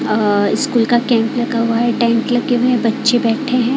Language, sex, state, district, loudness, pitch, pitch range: Hindi, female, Odisha, Khordha, -15 LUFS, 240 Hz, 230-250 Hz